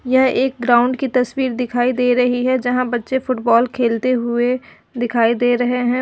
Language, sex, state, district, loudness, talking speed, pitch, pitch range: Hindi, female, Uttar Pradesh, Muzaffarnagar, -17 LUFS, 180 wpm, 250 Hz, 245-255 Hz